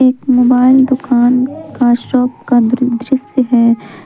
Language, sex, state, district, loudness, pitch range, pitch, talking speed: Hindi, female, Jharkhand, Palamu, -12 LUFS, 240-260 Hz, 250 Hz, 120 wpm